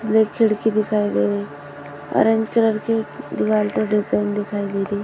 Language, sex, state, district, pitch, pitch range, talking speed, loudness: Hindi, female, Uttarakhand, Tehri Garhwal, 210 Hz, 200-220 Hz, 190 wpm, -20 LUFS